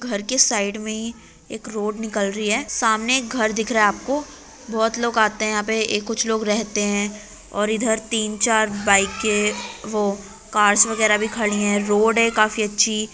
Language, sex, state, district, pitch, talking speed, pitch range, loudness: Hindi, female, Uttar Pradesh, Jyotiba Phule Nagar, 215 Hz, 200 wpm, 210-225 Hz, -20 LUFS